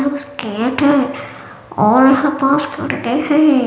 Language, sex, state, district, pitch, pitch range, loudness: Hindi, male, Chhattisgarh, Balrampur, 280 Hz, 260-285 Hz, -15 LUFS